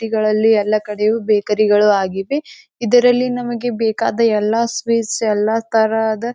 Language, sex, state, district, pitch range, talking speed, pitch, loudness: Kannada, female, Karnataka, Bijapur, 215-235 Hz, 130 wpm, 225 Hz, -16 LUFS